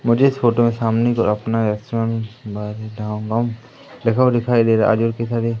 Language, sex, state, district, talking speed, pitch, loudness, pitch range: Hindi, male, Madhya Pradesh, Umaria, 170 wpm, 115 Hz, -19 LUFS, 110-120 Hz